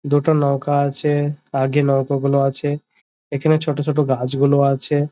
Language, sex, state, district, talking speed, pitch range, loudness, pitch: Bengali, male, West Bengal, Jhargram, 150 wpm, 140-145 Hz, -19 LUFS, 145 Hz